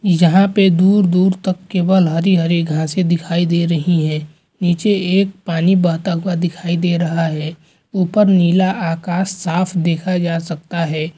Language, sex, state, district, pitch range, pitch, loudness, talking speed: Hindi, male, Chhattisgarh, Rajnandgaon, 170-185 Hz, 175 Hz, -16 LUFS, 160 wpm